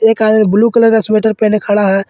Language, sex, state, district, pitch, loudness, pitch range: Hindi, male, Jharkhand, Ranchi, 215 Hz, -11 LUFS, 205-225 Hz